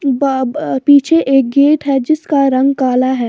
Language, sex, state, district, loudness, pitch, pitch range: Hindi, female, Bihar, Patna, -12 LUFS, 275 Hz, 260-285 Hz